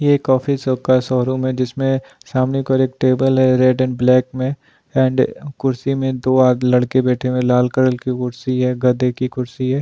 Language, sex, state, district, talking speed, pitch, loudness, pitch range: Hindi, male, Goa, North and South Goa, 195 wpm, 130 Hz, -17 LUFS, 125-130 Hz